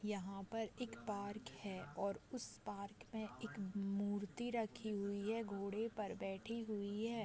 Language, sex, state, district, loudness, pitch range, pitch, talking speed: Hindi, female, Uttar Pradesh, Deoria, -45 LUFS, 200-225 Hz, 205 Hz, 155 wpm